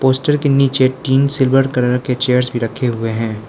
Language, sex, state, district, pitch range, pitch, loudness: Hindi, male, Arunachal Pradesh, Lower Dibang Valley, 125-135 Hz, 130 Hz, -15 LUFS